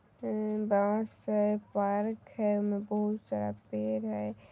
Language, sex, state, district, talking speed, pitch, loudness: Maithili, female, Bihar, Vaishali, 160 wpm, 205 Hz, -32 LUFS